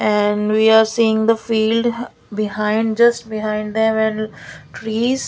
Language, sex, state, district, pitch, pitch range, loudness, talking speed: English, female, Maharashtra, Gondia, 220 Hz, 215-230 Hz, -17 LUFS, 135 wpm